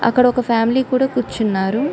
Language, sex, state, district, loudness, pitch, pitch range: Telugu, female, Andhra Pradesh, Chittoor, -17 LUFS, 250 Hz, 225-255 Hz